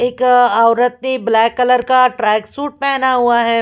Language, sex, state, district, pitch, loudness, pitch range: Hindi, female, Bihar, Patna, 245 Hz, -13 LUFS, 230-255 Hz